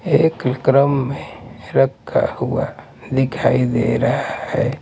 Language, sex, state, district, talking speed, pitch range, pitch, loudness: Hindi, male, Maharashtra, Mumbai Suburban, 110 wpm, 125-140 Hz, 135 Hz, -18 LUFS